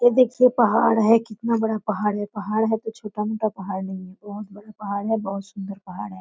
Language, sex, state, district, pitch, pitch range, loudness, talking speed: Hindi, female, Chhattisgarh, Korba, 210 Hz, 200-225 Hz, -22 LUFS, 215 wpm